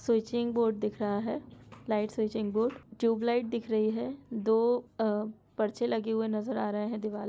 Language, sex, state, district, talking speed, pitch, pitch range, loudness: Hindi, female, Bihar, Sitamarhi, 175 wpm, 225 Hz, 215-235 Hz, -31 LUFS